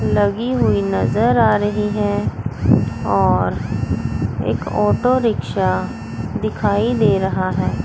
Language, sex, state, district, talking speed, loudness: Hindi, female, Chandigarh, Chandigarh, 105 wpm, -18 LUFS